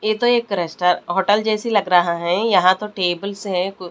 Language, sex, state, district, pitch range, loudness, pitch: Hindi, male, Delhi, New Delhi, 175-210 Hz, -18 LUFS, 190 Hz